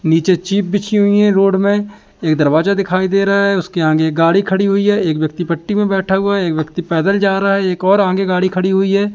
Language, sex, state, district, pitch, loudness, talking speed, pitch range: Hindi, male, Madhya Pradesh, Katni, 195 Hz, -14 LUFS, 265 wpm, 175-200 Hz